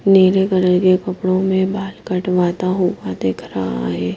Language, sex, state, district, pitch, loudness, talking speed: Hindi, female, Himachal Pradesh, Shimla, 185 Hz, -17 LUFS, 160 wpm